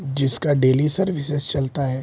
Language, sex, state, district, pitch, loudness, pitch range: Hindi, male, Bihar, Sitamarhi, 140 Hz, -21 LUFS, 135-150 Hz